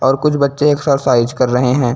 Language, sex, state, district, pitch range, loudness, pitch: Hindi, male, Uttar Pradesh, Lucknow, 125-140 Hz, -14 LUFS, 135 Hz